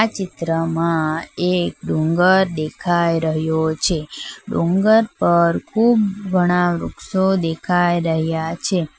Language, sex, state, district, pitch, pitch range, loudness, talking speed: Gujarati, female, Gujarat, Valsad, 175 Hz, 160-190 Hz, -18 LUFS, 95 wpm